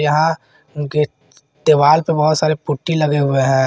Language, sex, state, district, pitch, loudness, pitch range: Hindi, male, Jharkhand, Garhwa, 150 Hz, -16 LUFS, 140-155 Hz